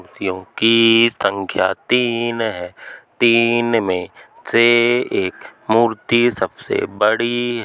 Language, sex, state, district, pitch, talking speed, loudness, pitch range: Hindi, male, Uttar Pradesh, Hamirpur, 115 Hz, 100 wpm, -17 LUFS, 105-120 Hz